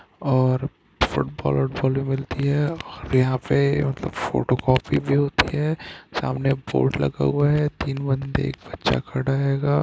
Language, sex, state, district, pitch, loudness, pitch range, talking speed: Hindi, male, Bihar, Gopalganj, 135 Hz, -23 LUFS, 130-140 Hz, 165 wpm